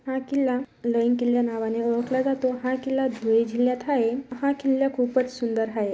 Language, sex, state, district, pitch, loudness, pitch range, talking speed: Marathi, female, Maharashtra, Dhule, 250 Hz, -25 LUFS, 235-265 Hz, 170 wpm